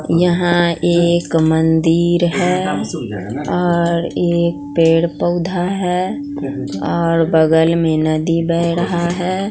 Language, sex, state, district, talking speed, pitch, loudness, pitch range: Hindi, female, Bihar, Katihar, 100 wpm, 170 Hz, -16 LUFS, 160-175 Hz